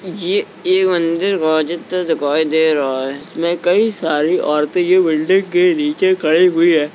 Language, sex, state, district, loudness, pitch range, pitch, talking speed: Hindi, male, Uttar Pradesh, Jalaun, -15 LUFS, 155-185 Hz, 170 Hz, 155 wpm